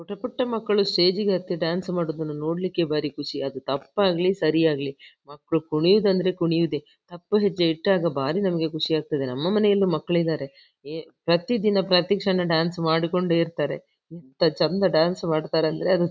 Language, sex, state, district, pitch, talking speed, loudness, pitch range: Kannada, female, Karnataka, Dakshina Kannada, 170 Hz, 155 wpm, -23 LUFS, 155-185 Hz